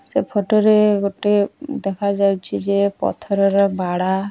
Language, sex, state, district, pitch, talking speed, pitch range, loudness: Odia, female, Odisha, Nuapada, 200 Hz, 110 wpm, 195-210 Hz, -18 LUFS